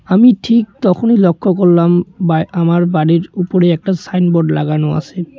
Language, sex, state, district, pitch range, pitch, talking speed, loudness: Bengali, male, West Bengal, Cooch Behar, 165-190 Hz, 175 Hz, 145 wpm, -13 LUFS